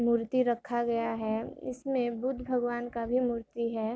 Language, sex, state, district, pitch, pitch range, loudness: Hindi, female, Bihar, Gopalganj, 240 Hz, 230-255 Hz, -31 LUFS